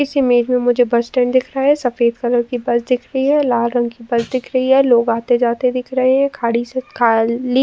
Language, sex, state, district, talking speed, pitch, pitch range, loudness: Hindi, female, Uttar Pradesh, Jyotiba Phule Nagar, 265 wpm, 245 Hz, 235-260 Hz, -16 LUFS